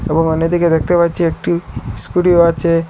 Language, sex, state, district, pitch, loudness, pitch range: Bengali, male, Assam, Hailakandi, 165 Hz, -14 LUFS, 160-170 Hz